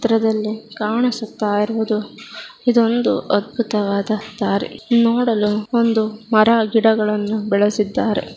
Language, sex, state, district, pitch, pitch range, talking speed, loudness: Kannada, female, Karnataka, Raichur, 220 Hz, 210-230 Hz, 70 wpm, -18 LUFS